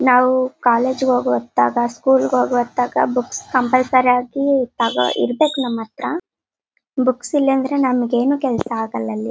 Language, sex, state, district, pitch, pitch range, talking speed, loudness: Kannada, female, Karnataka, Bellary, 250 Hz, 240-265 Hz, 110 wpm, -18 LUFS